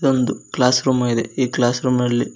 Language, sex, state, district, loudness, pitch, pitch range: Kannada, male, Karnataka, Koppal, -19 LUFS, 125 Hz, 120-130 Hz